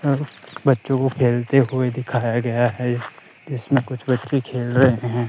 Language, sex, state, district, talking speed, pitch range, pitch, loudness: Hindi, male, Himachal Pradesh, Shimla, 160 wpm, 120-135 Hz, 125 Hz, -21 LUFS